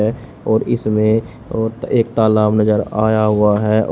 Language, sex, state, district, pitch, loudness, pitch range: Hindi, male, Uttar Pradesh, Shamli, 110 Hz, -16 LUFS, 105-110 Hz